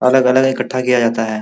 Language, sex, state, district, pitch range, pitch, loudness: Hindi, male, Uttar Pradesh, Muzaffarnagar, 115-130 Hz, 125 Hz, -15 LUFS